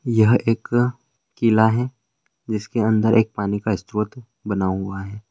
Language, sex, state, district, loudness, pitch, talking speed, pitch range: Hindi, male, Rajasthan, Nagaur, -21 LUFS, 110 Hz, 135 wpm, 105-115 Hz